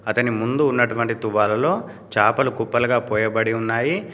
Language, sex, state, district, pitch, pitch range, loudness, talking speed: Telugu, male, Telangana, Komaram Bheem, 115 Hz, 110-120 Hz, -20 LUFS, 115 wpm